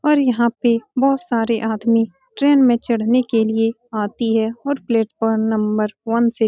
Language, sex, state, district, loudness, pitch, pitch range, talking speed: Hindi, female, Bihar, Saran, -18 LUFS, 230 Hz, 220-245 Hz, 175 wpm